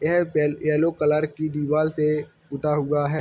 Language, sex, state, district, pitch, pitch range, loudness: Hindi, male, Uttar Pradesh, Jalaun, 150 Hz, 150-155 Hz, -23 LUFS